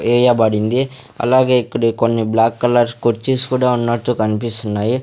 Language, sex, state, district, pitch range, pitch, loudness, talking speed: Telugu, male, Andhra Pradesh, Sri Satya Sai, 115-125 Hz, 120 Hz, -16 LUFS, 120 wpm